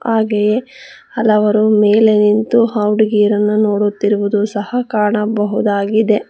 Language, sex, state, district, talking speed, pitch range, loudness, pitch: Kannada, female, Karnataka, Bangalore, 85 wpm, 210-220 Hz, -14 LUFS, 210 Hz